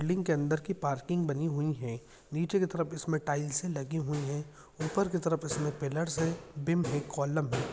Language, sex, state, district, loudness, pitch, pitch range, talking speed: Hindi, male, Bihar, Jahanabad, -33 LUFS, 155 Hz, 145-165 Hz, 200 wpm